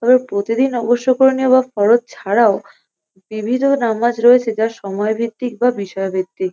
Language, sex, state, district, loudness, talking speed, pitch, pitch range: Bengali, female, West Bengal, North 24 Parganas, -16 LUFS, 130 wpm, 235 Hz, 210-250 Hz